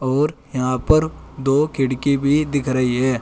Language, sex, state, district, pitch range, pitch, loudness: Hindi, male, Uttar Pradesh, Saharanpur, 130-145 Hz, 135 Hz, -19 LUFS